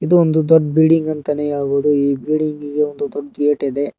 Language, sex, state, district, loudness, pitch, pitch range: Kannada, male, Karnataka, Koppal, -17 LUFS, 150 Hz, 145-160 Hz